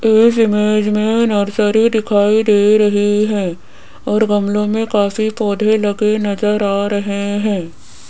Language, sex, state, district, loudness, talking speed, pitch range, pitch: Hindi, female, Rajasthan, Jaipur, -15 LUFS, 135 wpm, 205-215 Hz, 210 Hz